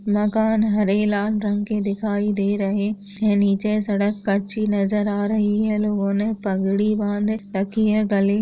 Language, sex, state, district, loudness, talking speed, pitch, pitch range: Hindi, female, Maharashtra, Sindhudurg, -21 LUFS, 155 wpm, 205 Hz, 200-215 Hz